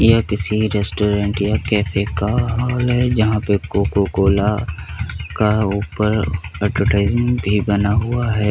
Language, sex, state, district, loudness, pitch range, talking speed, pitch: Hindi, male, Uttar Pradesh, Hamirpur, -18 LUFS, 100-110 Hz, 125 wpm, 105 Hz